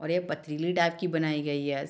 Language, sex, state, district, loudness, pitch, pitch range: Hindi, female, Chhattisgarh, Bilaspur, -29 LUFS, 155 Hz, 150-170 Hz